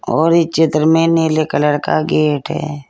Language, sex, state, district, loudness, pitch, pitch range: Hindi, female, Uttar Pradesh, Saharanpur, -14 LUFS, 155 Hz, 145-160 Hz